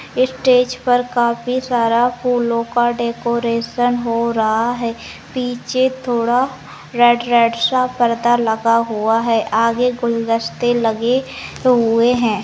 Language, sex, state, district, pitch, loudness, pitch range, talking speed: Hindi, female, Rajasthan, Churu, 240 Hz, -17 LUFS, 230-245 Hz, 120 wpm